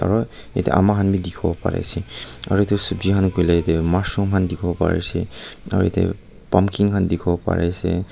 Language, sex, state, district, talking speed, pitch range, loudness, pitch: Nagamese, male, Nagaland, Kohima, 215 wpm, 85-100 Hz, -20 LUFS, 95 Hz